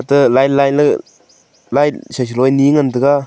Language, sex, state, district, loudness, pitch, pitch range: Wancho, male, Arunachal Pradesh, Longding, -13 LUFS, 140 Hz, 135-145 Hz